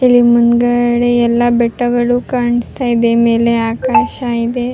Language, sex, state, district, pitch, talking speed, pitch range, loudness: Kannada, female, Karnataka, Raichur, 240 Hz, 125 wpm, 235-245 Hz, -13 LUFS